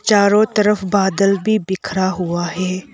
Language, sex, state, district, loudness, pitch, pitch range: Hindi, female, Arunachal Pradesh, Longding, -17 LUFS, 195 Hz, 185-210 Hz